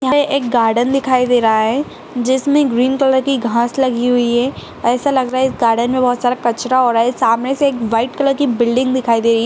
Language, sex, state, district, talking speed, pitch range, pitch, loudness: Kumaoni, female, Uttarakhand, Tehri Garhwal, 255 wpm, 235-265 Hz, 250 Hz, -15 LUFS